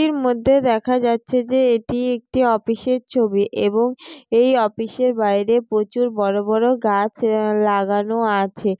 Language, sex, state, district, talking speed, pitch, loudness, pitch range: Bengali, female, West Bengal, Jalpaiguri, 150 wpm, 230 Hz, -19 LUFS, 210-250 Hz